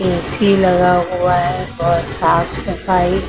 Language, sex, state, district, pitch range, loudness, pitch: Hindi, female, Maharashtra, Mumbai Suburban, 170-180 Hz, -15 LUFS, 180 Hz